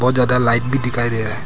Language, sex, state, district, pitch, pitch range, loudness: Hindi, male, Arunachal Pradesh, Papum Pare, 125 Hz, 115-125 Hz, -16 LUFS